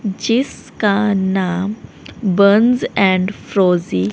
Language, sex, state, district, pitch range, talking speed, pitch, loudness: Hindi, female, Haryana, Rohtak, 185-210 Hz, 70 wpm, 195 Hz, -16 LUFS